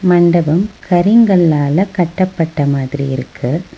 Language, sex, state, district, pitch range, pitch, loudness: Tamil, female, Tamil Nadu, Nilgiris, 145-185 Hz, 170 Hz, -13 LUFS